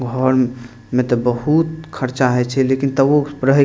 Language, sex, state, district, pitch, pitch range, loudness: Maithili, male, Bihar, Madhepura, 130 Hz, 125-140 Hz, -17 LUFS